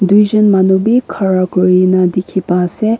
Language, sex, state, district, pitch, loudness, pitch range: Nagamese, female, Nagaland, Kohima, 190 Hz, -12 LUFS, 185-210 Hz